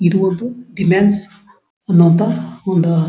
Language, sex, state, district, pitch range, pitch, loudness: Kannada, male, Karnataka, Dharwad, 175-200 Hz, 190 Hz, -15 LUFS